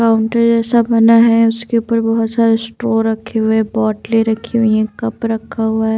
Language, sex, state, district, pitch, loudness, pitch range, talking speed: Hindi, female, Bihar, Patna, 225 Hz, -14 LUFS, 220-230 Hz, 190 wpm